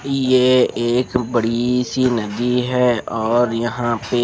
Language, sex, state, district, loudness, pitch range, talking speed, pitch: Hindi, male, Odisha, Khordha, -18 LUFS, 120-125 Hz, 125 wpm, 120 Hz